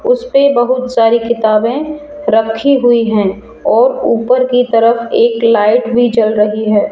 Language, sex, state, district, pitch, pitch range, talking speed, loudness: Hindi, female, Rajasthan, Jaipur, 235 Hz, 220-255 Hz, 155 wpm, -12 LUFS